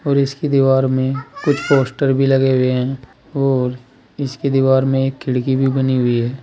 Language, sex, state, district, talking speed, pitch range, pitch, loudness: Hindi, male, Uttar Pradesh, Saharanpur, 185 wpm, 130-135 Hz, 135 Hz, -17 LUFS